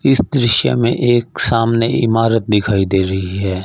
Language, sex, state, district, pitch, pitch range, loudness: Hindi, male, Punjab, Fazilka, 115 Hz, 100-120 Hz, -14 LUFS